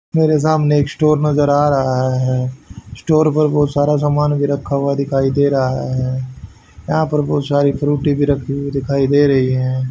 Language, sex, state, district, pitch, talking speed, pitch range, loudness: Hindi, male, Haryana, Rohtak, 140 Hz, 195 wpm, 130-145 Hz, -16 LUFS